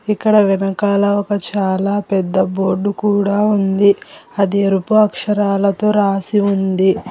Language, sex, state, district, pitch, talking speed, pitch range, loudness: Telugu, female, Telangana, Hyderabad, 200 Hz, 110 wpm, 195-205 Hz, -15 LUFS